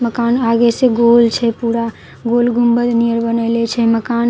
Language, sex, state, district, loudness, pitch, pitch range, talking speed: Maithili, female, Bihar, Katihar, -14 LUFS, 235 Hz, 230-240 Hz, 195 wpm